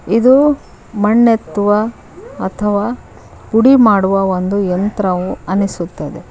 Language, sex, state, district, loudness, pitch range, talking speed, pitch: Kannada, female, Karnataka, Koppal, -14 LUFS, 190-225 Hz, 75 wpm, 205 Hz